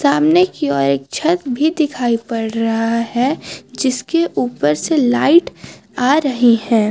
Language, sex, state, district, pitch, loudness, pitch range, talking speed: Hindi, female, Jharkhand, Garhwa, 250 Hz, -16 LUFS, 230-310 Hz, 145 wpm